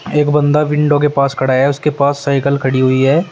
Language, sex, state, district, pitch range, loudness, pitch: Hindi, male, Uttar Pradesh, Shamli, 135-150 Hz, -13 LUFS, 140 Hz